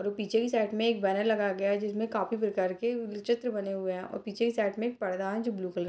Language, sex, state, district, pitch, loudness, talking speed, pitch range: Hindi, female, Bihar, Purnia, 210 Hz, -31 LUFS, 315 wpm, 195-230 Hz